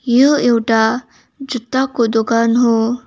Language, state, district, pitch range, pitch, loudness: Nepali, West Bengal, Darjeeling, 230-255 Hz, 240 Hz, -15 LUFS